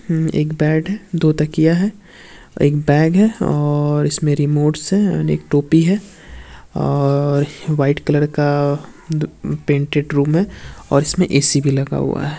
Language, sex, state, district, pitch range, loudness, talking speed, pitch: Hindi, male, Uttar Pradesh, Varanasi, 145-165 Hz, -17 LUFS, 160 wpm, 150 Hz